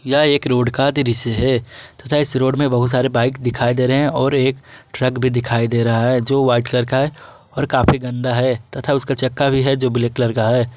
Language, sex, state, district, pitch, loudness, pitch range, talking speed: Hindi, male, Jharkhand, Garhwa, 130 Hz, -17 LUFS, 120-135 Hz, 240 wpm